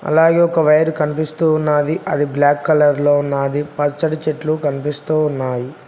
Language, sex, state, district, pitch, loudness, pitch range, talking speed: Telugu, male, Telangana, Mahabubabad, 150 Hz, -16 LUFS, 145-155 Hz, 145 wpm